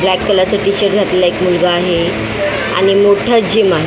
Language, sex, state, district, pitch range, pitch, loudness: Marathi, female, Maharashtra, Mumbai Suburban, 180-200 Hz, 190 Hz, -12 LUFS